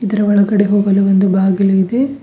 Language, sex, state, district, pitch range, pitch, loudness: Kannada, female, Karnataka, Bidar, 195-210 Hz, 200 Hz, -13 LUFS